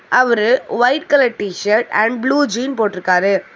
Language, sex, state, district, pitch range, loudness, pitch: Tamil, female, Tamil Nadu, Chennai, 205-270 Hz, -15 LUFS, 240 Hz